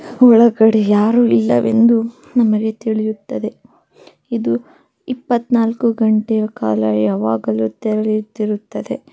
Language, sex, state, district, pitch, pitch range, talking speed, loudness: Kannada, female, Karnataka, Chamarajanagar, 220 Hz, 205-235 Hz, 80 wpm, -16 LUFS